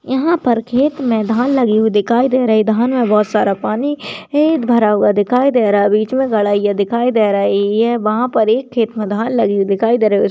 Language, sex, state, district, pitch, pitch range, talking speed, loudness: Hindi, female, Maharashtra, Sindhudurg, 225 Hz, 210-250 Hz, 240 wpm, -14 LUFS